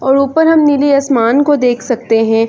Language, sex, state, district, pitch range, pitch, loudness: Hindi, female, Chhattisgarh, Sarguja, 235-285 Hz, 270 Hz, -11 LUFS